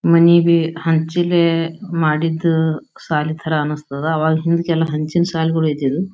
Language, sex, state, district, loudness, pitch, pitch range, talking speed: Kannada, female, Karnataka, Bijapur, -17 LUFS, 165 Hz, 155-170 Hz, 105 wpm